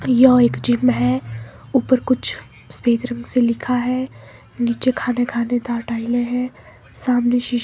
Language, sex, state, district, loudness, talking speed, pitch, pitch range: Hindi, male, Himachal Pradesh, Shimla, -19 LUFS, 140 wpm, 245 Hz, 235-250 Hz